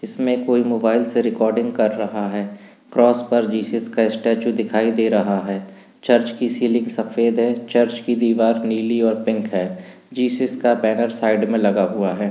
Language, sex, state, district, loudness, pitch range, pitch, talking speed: Hindi, male, Uttar Pradesh, Budaun, -19 LUFS, 110-120 Hz, 115 Hz, 180 wpm